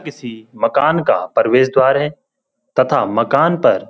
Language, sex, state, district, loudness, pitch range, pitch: Hindi, male, Uttarakhand, Uttarkashi, -15 LUFS, 130-205 Hz, 140 Hz